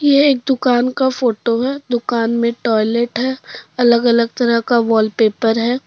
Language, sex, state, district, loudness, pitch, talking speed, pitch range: Hindi, female, Jharkhand, Deoghar, -16 LUFS, 240 Hz, 165 wpm, 230-255 Hz